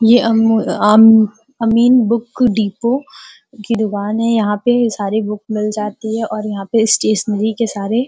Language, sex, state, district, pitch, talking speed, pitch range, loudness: Hindi, female, Uttar Pradesh, Gorakhpur, 220 Hz, 170 wpm, 210-230 Hz, -15 LUFS